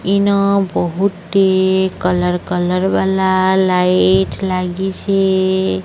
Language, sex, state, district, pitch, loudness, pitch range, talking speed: Odia, male, Odisha, Sambalpur, 190 Hz, -15 LUFS, 180-190 Hz, 70 wpm